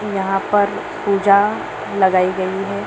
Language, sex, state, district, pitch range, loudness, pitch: Hindi, female, Maharashtra, Mumbai Suburban, 190-205 Hz, -17 LUFS, 200 Hz